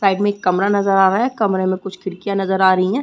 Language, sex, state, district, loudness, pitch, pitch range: Hindi, female, Chhattisgarh, Balrampur, -17 LUFS, 195 Hz, 190-200 Hz